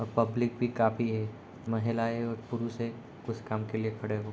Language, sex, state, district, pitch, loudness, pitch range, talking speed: Hindi, male, Bihar, Sitamarhi, 115 Hz, -32 LUFS, 110-115 Hz, 210 wpm